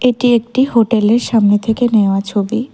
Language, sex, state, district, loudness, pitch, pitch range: Bengali, female, Tripura, West Tripura, -13 LUFS, 230 Hz, 210-245 Hz